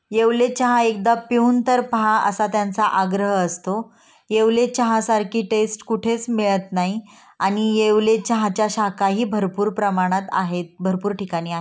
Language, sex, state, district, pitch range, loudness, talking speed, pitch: Marathi, female, Maharashtra, Pune, 195-230 Hz, -20 LUFS, 145 wpm, 215 Hz